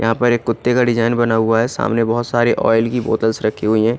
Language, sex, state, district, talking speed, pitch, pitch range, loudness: Hindi, male, Odisha, Khordha, 240 wpm, 115 Hz, 115-120 Hz, -16 LUFS